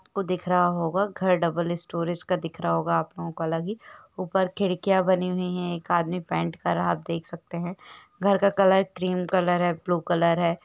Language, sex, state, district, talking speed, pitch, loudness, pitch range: Hindi, female, Bihar, Gopalganj, 215 wpm, 175 Hz, -25 LUFS, 170-185 Hz